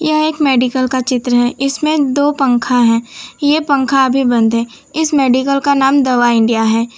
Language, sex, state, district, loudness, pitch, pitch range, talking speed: Hindi, female, Gujarat, Valsad, -13 LUFS, 265 Hz, 245-285 Hz, 190 wpm